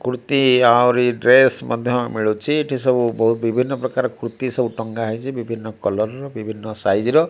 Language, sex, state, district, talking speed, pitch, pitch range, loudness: Odia, male, Odisha, Malkangiri, 175 wpm, 120 Hz, 115-130 Hz, -19 LUFS